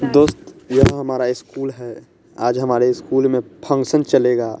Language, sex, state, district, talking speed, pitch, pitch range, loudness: Hindi, male, Bihar, West Champaran, 145 wpm, 130 Hz, 125-135 Hz, -18 LUFS